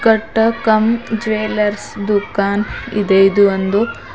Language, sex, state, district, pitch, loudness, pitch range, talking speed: Kannada, female, Karnataka, Bidar, 210 Hz, -15 LUFS, 200-225 Hz, 85 wpm